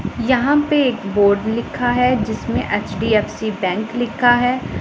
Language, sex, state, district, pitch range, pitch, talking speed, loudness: Hindi, female, Punjab, Pathankot, 215-250 Hz, 235 Hz, 135 wpm, -18 LUFS